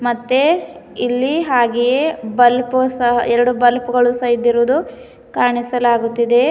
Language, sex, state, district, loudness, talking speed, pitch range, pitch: Kannada, female, Karnataka, Bidar, -15 LUFS, 100 wpm, 240-255 Hz, 245 Hz